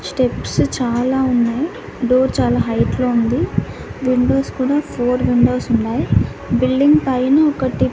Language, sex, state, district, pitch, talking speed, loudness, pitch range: Telugu, female, Andhra Pradesh, Annamaya, 255 Hz, 120 wpm, -17 LUFS, 235-265 Hz